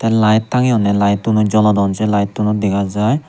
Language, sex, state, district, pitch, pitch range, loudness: Chakma, male, Tripura, Unakoti, 105 Hz, 100-110 Hz, -15 LUFS